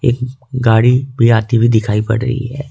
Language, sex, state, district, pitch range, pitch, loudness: Hindi, male, Jharkhand, Ranchi, 115-125 Hz, 125 Hz, -14 LUFS